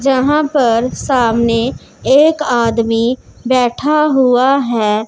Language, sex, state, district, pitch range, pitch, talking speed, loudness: Hindi, female, Punjab, Pathankot, 230-275 Hz, 250 Hz, 95 wpm, -13 LUFS